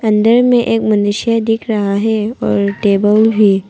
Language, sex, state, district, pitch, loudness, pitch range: Hindi, female, Arunachal Pradesh, Papum Pare, 215 Hz, -13 LUFS, 205-225 Hz